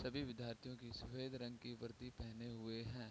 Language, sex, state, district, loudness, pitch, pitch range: Hindi, male, Bihar, Sitamarhi, -50 LUFS, 120 Hz, 115-125 Hz